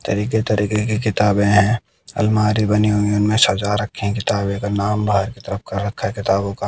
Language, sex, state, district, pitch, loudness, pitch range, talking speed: Hindi, male, Haryana, Jhajjar, 105 Hz, -18 LUFS, 100-105 Hz, 205 wpm